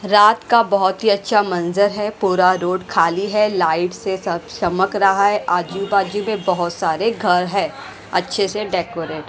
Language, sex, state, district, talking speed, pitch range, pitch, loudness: Hindi, female, Haryana, Rohtak, 180 wpm, 180-205 Hz, 195 Hz, -18 LUFS